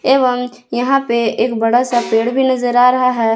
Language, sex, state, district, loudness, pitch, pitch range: Hindi, female, Jharkhand, Palamu, -15 LUFS, 245 Hz, 235-255 Hz